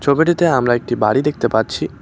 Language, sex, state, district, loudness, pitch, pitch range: Bengali, male, West Bengal, Cooch Behar, -16 LUFS, 135 Hz, 120-160 Hz